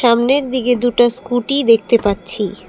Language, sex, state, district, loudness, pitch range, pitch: Bengali, female, Assam, Kamrup Metropolitan, -15 LUFS, 215-245 Hz, 240 Hz